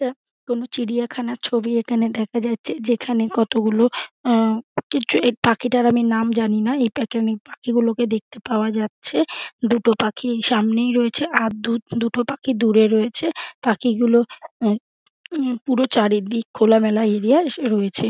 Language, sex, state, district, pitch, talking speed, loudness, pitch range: Bengali, female, West Bengal, Dakshin Dinajpur, 235 Hz, 145 wpm, -20 LUFS, 225-245 Hz